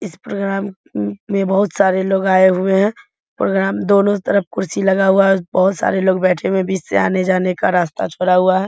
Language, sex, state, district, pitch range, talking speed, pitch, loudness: Hindi, female, Bihar, Bhagalpur, 185-195 Hz, 195 wpm, 190 Hz, -16 LUFS